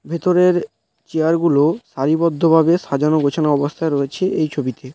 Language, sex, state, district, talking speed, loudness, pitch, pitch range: Bengali, male, West Bengal, Dakshin Dinajpur, 135 wpm, -17 LUFS, 160 Hz, 145-170 Hz